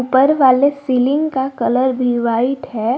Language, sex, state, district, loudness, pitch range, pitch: Hindi, female, Jharkhand, Garhwa, -15 LUFS, 245-270 Hz, 260 Hz